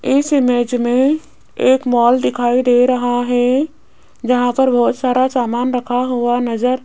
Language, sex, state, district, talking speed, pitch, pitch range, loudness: Hindi, female, Rajasthan, Jaipur, 160 wpm, 250 Hz, 245-255 Hz, -15 LUFS